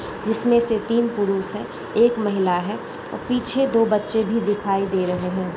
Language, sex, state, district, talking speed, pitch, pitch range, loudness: Hindi, female, Chhattisgarh, Bilaspur, 185 wpm, 210 Hz, 195-230 Hz, -21 LUFS